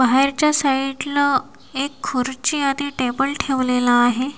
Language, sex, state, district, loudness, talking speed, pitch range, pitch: Marathi, female, Maharashtra, Washim, -19 LUFS, 110 wpm, 255-285 Hz, 270 Hz